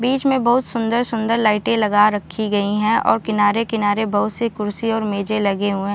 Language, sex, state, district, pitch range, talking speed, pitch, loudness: Hindi, female, Maharashtra, Chandrapur, 205-230 Hz, 210 wpm, 215 Hz, -18 LUFS